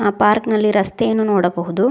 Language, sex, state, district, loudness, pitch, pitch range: Kannada, female, Karnataka, Koppal, -17 LUFS, 205 Hz, 195-215 Hz